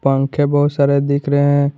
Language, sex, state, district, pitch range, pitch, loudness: Hindi, male, Jharkhand, Garhwa, 140-145 Hz, 140 Hz, -15 LUFS